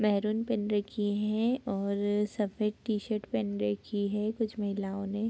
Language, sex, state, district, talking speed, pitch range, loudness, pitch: Hindi, female, Bihar, Darbhanga, 170 wpm, 200-215 Hz, -32 LUFS, 210 Hz